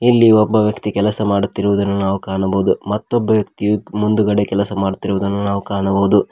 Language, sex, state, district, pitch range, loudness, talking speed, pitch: Kannada, male, Karnataka, Koppal, 100-105 Hz, -17 LUFS, 135 wpm, 100 Hz